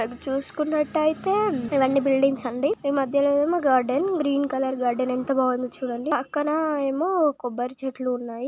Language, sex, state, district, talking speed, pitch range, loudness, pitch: Telugu, female, Andhra Pradesh, Chittoor, 150 wpm, 255-295 Hz, -24 LUFS, 270 Hz